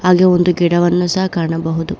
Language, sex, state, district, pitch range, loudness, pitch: Kannada, female, Karnataka, Bangalore, 170-185 Hz, -14 LUFS, 175 Hz